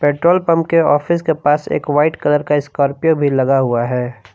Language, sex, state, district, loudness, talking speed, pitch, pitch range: Hindi, male, Jharkhand, Palamu, -15 LUFS, 205 wpm, 145 Hz, 135-160 Hz